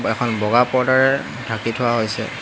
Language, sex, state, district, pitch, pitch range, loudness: Assamese, male, Assam, Hailakandi, 120 Hz, 110-125 Hz, -19 LUFS